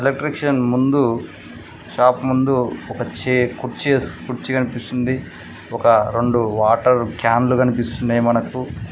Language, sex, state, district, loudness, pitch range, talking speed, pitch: Telugu, male, Telangana, Mahabubabad, -18 LUFS, 120-130 Hz, 100 wpm, 125 Hz